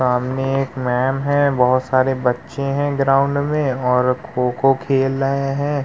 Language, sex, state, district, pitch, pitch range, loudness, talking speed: Hindi, male, Uttar Pradesh, Muzaffarnagar, 135 Hz, 125-140 Hz, -18 LUFS, 155 wpm